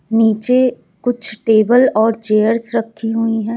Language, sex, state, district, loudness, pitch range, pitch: Hindi, female, Uttar Pradesh, Lucknow, -14 LUFS, 220-235 Hz, 225 Hz